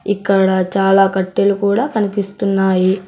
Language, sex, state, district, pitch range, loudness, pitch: Telugu, male, Telangana, Hyderabad, 190-200 Hz, -15 LUFS, 195 Hz